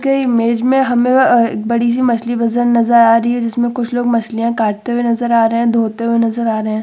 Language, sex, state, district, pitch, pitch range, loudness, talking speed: Hindi, female, Uttar Pradesh, Muzaffarnagar, 235 Hz, 230-240 Hz, -14 LUFS, 255 wpm